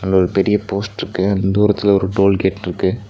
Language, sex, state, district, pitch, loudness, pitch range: Tamil, male, Tamil Nadu, Nilgiris, 100 Hz, -17 LUFS, 95-100 Hz